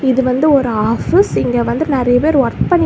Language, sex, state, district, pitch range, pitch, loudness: Tamil, female, Tamil Nadu, Kanyakumari, 245-310 Hz, 260 Hz, -14 LUFS